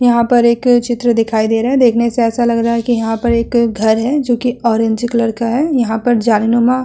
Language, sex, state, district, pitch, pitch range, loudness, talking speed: Hindi, female, Uttar Pradesh, Hamirpur, 235 Hz, 230-245 Hz, -13 LUFS, 265 wpm